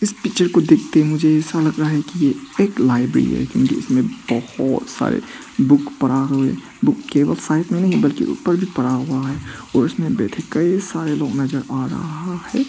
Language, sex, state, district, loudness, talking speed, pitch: Hindi, male, Arunachal Pradesh, Papum Pare, -18 LUFS, 205 wpm, 165 Hz